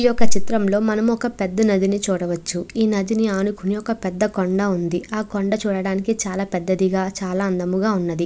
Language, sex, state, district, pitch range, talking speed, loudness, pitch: Telugu, female, Andhra Pradesh, Chittoor, 190-215 Hz, 175 wpm, -21 LUFS, 195 Hz